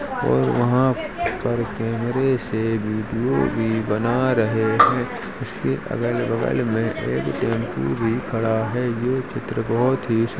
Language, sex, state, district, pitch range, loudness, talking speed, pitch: Hindi, male, Uttar Pradesh, Jalaun, 110-125 Hz, -22 LUFS, 145 wpm, 115 Hz